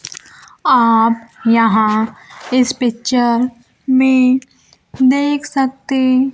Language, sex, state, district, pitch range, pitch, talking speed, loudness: Hindi, female, Bihar, Kaimur, 230-260 Hz, 255 Hz, 65 wpm, -14 LUFS